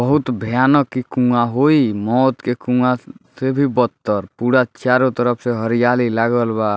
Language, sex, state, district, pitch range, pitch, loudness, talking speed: Bhojpuri, male, Bihar, Muzaffarpur, 120-130 Hz, 125 Hz, -17 LUFS, 160 wpm